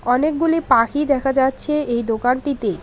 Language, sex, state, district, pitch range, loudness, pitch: Bengali, female, West Bengal, Alipurduar, 240-300 Hz, -18 LUFS, 265 Hz